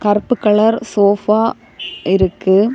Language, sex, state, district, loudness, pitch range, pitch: Tamil, female, Tamil Nadu, Kanyakumari, -15 LUFS, 200-220 Hz, 210 Hz